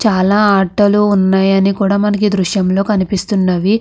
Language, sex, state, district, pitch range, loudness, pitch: Telugu, female, Andhra Pradesh, Krishna, 190-205 Hz, -13 LUFS, 200 Hz